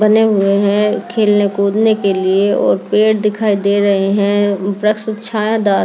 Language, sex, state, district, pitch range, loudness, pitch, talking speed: Hindi, female, Delhi, New Delhi, 200-215 Hz, -14 LUFS, 205 Hz, 145 wpm